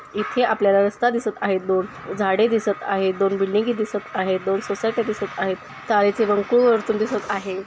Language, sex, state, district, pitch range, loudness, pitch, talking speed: Marathi, female, Maharashtra, Sindhudurg, 195-220 Hz, -21 LUFS, 205 Hz, 180 wpm